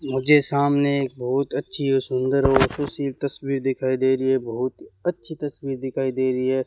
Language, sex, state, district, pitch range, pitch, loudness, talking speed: Hindi, male, Rajasthan, Bikaner, 130-140 Hz, 135 Hz, -23 LUFS, 190 wpm